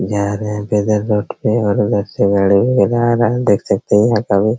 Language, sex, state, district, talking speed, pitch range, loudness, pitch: Hindi, male, Bihar, Araria, 195 wpm, 100-110 Hz, -15 LUFS, 105 Hz